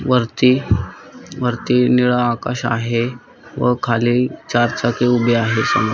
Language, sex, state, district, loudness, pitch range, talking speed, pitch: Marathi, male, Maharashtra, Solapur, -17 LUFS, 120-125 Hz, 110 wpm, 120 Hz